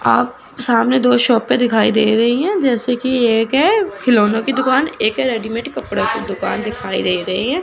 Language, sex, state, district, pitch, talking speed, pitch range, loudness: Hindi, female, Chandigarh, Chandigarh, 245 Hz, 195 wpm, 225-260 Hz, -16 LUFS